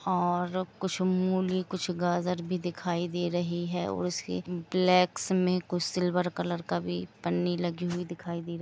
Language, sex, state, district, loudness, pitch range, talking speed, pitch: Hindi, female, Jharkhand, Jamtara, -30 LUFS, 170-180 Hz, 180 wpm, 175 Hz